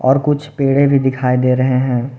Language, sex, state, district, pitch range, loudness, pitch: Hindi, male, Jharkhand, Garhwa, 125-140 Hz, -15 LUFS, 130 Hz